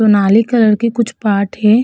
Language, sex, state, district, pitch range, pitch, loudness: Hindi, female, Uttar Pradesh, Hamirpur, 210-235 Hz, 220 Hz, -13 LUFS